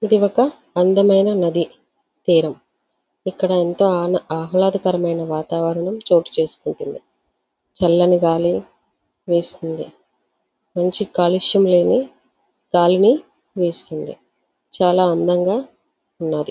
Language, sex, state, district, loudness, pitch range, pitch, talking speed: Telugu, female, Andhra Pradesh, Visakhapatnam, -18 LUFS, 170-195 Hz, 180 Hz, 75 wpm